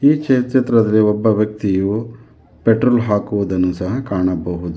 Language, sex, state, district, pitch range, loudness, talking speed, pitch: Kannada, male, Karnataka, Bangalore, 95-115 Hz, -17 LUFS, 90 wpm, 105 Hz